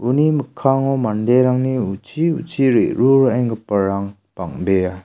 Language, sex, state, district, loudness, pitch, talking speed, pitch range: Garo, male, Meghalaya, South Garo Hills, -17 LUFS, 125 Hz, 85 wpm, 100-135 Hz